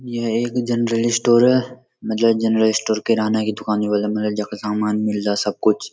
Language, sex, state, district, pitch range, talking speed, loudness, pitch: Garhwali, male, Uttarakhand, Uttarkashi, 105-120 Hz, 180 wpm, -19 LUFS, 110 Hz